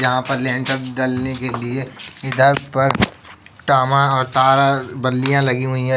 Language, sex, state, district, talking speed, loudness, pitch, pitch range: Hindi, male, Uttar Pradesh, Jalaun, 120 wpm, -17 LUFS, 130 Hz, 130-135 Hz